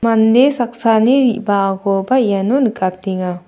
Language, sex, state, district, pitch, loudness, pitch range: Garo, female, Meghalaya, South Garo Hills, 220 Hz, -15 LUFS, 195-245 Hz